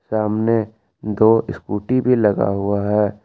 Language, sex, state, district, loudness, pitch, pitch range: Hindi, male, Jharkhand, Palamu, -18 LUFS, 105 Hz, 105-110 Hz